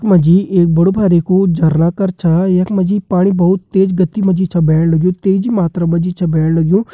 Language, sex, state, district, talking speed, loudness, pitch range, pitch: Hindi, male, Uttarakhand, Uttarkashi, 235 wpm, -13 LUFS, 170-190 Hz, 180 Hz